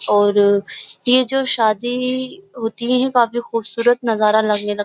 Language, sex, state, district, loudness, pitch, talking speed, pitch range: Hindi, female, Uttar Pradesh, Jyotiba Phule Nagar, -16 LUFS, 235 Hz, 150 wpm, 215-250 Hz